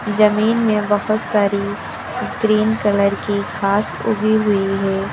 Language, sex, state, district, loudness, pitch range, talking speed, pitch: Hindi, female, Uttar Pradesh, Lucknow, -18 LUFS, 200-215 Hz, 130 wpm, 210 Hz